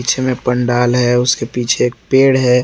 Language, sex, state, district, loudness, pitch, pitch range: Hindi, male, Jharkhand, Garhwa, -14 LUFS, 125 Hz, 120-125 Hz